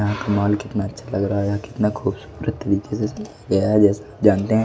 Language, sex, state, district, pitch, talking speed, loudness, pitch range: Hindi, male, Odisha, Malkangiri, 105 Hz, 230 wpm, -21 LUFS, 100-105 Hz